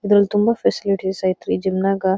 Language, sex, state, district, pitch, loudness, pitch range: Kannada, female, Karnataka, Dharwad, 195 Hz, -19 LUFS, 190-205 Hz